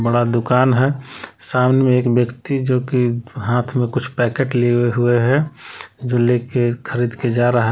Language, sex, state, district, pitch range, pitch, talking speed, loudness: Hindi, male, Jharkhand, Palamu, 120-130 Hz, 125 Hz, 180 wpm, -18 LUFS